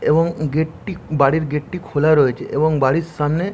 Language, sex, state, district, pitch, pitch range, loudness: Bengali, male, West Bengal, Jhargram, 155 Hz, 150-165 Hz, -18 LUFS